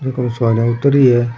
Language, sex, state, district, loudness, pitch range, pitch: Rajasthani, male, Rajasthan, Churu, -14 LUFS, 115-130 Hz, 120 Hz